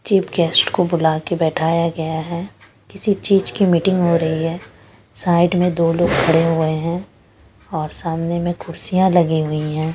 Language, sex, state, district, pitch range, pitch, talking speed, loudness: Hindi, female, Punjab, Pathankot, 160-175 Hz, 165 Hz, 170 wpm, -18 LUFS